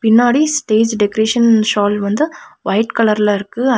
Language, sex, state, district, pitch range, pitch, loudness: Tamil, female, Tamil Nadu, Nilgiris, 210-240 Hz, 220 Hz, -14 LUFS